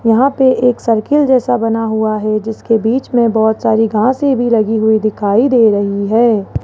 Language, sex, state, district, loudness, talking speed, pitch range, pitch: Hindi, male, Rajasthan, Jaipur, -13 LUFS, 190 wpm, 220-245 Hz, 225 Hz